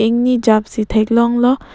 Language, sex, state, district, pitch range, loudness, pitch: Karbi, female, Assam, Karbi Anglong, 220-245 Hz, -14 LUFS, 235 Hz